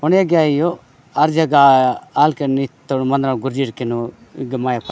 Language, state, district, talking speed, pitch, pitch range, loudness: Gondi, Chhattisgarh, Sukma, 160 wpm, 135 Hz, 130-150 Hz, -17 LUFS